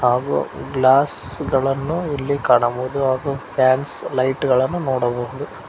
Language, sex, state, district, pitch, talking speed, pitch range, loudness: Kannada, male, Karnataka, Koppal, 130 Hz, 105 wpm, 130-140 Hz, -17 LUFS